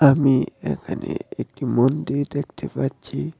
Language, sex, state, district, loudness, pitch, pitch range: Bengali, male, Tripura, West Tripura, -23 LUFS, 140 Hz, 130-145 Hz